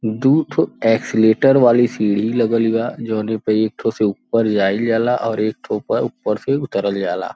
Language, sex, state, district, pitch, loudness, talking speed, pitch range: Bhojpuri, male, Uttar Pradesh, Gorakhpur, 115 Hz, -17 LUFS, 185 wpm, 110-120 Hz